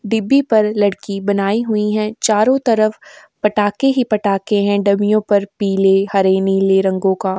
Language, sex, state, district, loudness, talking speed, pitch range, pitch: Hindi, female, Uttar Pradesh, Jyotiba Phule Nagar, -15 LUFS, 165 wpm, 195-215 Hz, 205 Hz